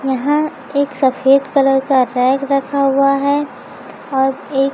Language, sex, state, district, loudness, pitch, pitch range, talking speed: Hindi, female, Bihar, Kaimur, -15 LUFS, 275 Hz, 265-280 Hz, 140 wpm